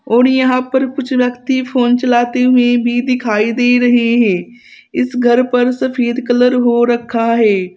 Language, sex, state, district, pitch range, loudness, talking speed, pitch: Hindi, female, Uttar Pradesh, Saharanpur, 240-255 Hz, -13 LUFS, 160 wpm, 245 Hz